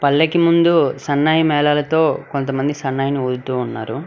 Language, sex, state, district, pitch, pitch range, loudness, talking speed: Telugu, male, Telangana, Hyderabad, 145 Hz, 135-160 Hz, -17 LUFS, 120 wpm